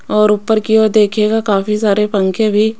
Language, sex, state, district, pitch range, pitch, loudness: Hindi, female, Rajasthan, Jaipur, 210-220 Hz, 210 Hz, -13 LUFS